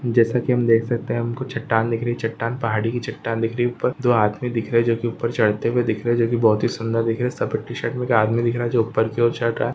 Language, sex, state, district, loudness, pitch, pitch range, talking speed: Hindi, male, Maharashtra, Solapur, -21 LUFS, 115 Hz, 115-120 Hz, 300 wpm